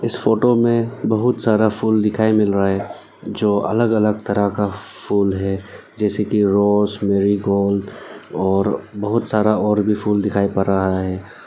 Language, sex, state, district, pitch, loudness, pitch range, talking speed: Hindi, male, Arunachal Pradesh, Lower Dibang Valley, 105 Hz, -18 LUFS, 100-110 Hz, 165 wpm